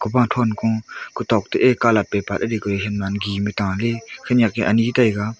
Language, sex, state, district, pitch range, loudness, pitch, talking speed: Wancho, female, Arunachal Pradesh, Longding, 100-115 Hz, -20 LUFS, 110 Hz, 165 wpm